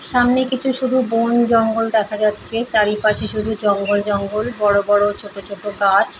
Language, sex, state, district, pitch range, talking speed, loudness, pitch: Bengali, female, West Bengal, Paschim Medinipur, 205-230 Hz, 155 wpm, -17 LUFS, 215 Hz